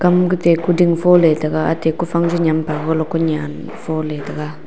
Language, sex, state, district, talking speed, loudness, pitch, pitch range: Wancho, female, Arunachal Pradesh, Longding, 155 wpm, -17 LUFS, 160 Hz, 155-175 Hz